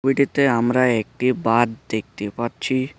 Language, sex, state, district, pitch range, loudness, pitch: Bengali, male, West Bengal, Cooch Behar, 115-130 Hz, -21 LUFS, 125 Hz